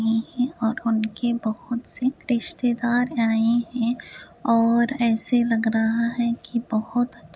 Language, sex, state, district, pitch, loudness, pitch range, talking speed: Hindi, female, Uttar Pradesh, Hamirpur, 235 Hz, -23 LUFS, 225-245 Hz, 120 wpm